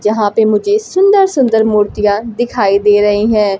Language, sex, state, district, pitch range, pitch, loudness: Hindi, female, Bihar, Kaimur, 205-240 Hz, 215 Hz, -12 LUFS